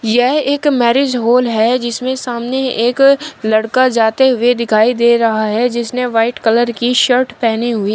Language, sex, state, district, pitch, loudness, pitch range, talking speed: Hindi, female, Uttar Pradesh, Shamli, 240 Hz, -13 LUFS, 230-255 Hz, 165 wpm